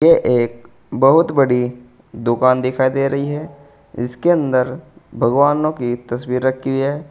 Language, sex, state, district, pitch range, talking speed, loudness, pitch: Hindi, male, Uttar Pradesh, Saharanpur, 125-145 Hz, 135 wpm, -17 LUFS, 130 Hz